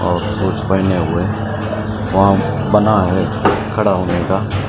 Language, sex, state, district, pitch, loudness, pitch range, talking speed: Hindi, male, Maharashtra, Mumbai Suburban, 100 Hz, -16 LUFS, 95-105 Hz, 115 wpm